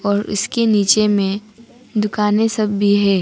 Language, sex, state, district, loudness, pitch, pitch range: Hindi, female, Arunachal Pradesh, Papum Pare, -17 LUFS, 210 Hz, 205-220 Hz